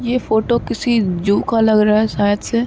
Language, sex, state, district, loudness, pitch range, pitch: Hindi, female, Uttar Pradesh, Muzaffarnagar, -16 LUFS, 210-235 Hz, 220 Hz